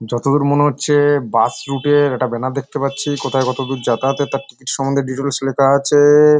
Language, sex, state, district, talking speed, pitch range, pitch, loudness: Bengali, male, West Bengal, North 24 Parganas, 195 wpm, 130-145 Hz, 135 Hz, -16 LUFS